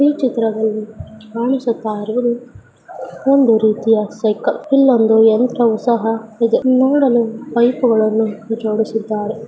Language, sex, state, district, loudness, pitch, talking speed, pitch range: Kannada, female, Karnataka, Mysore, -15 LUFS, 225 Hz, 80 wpm, 220-245 Hz